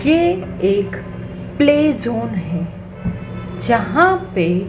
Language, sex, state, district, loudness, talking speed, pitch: Hindi, female, Madhya Pradesh, Dhar, -18 LUFS, 90 wpm, 195 Hz